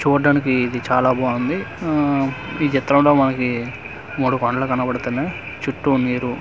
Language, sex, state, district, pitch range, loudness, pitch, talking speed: Telugu, male, Andhra Pradesh, Manyam, 125-140 Hz, -19 LUFS, 130 Hz, 130 wpm